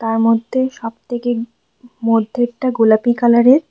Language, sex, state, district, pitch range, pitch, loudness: Bengali, female, West Bengal, Alipurduar, 230-245 Hz, 240 Hz, -16 LUFS